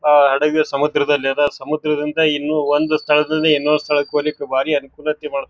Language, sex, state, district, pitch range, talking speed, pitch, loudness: Kannada, male, Karnataka, Bijapur, 145-150 Hz, 155 wpm, 150 Hz, -17 LUFS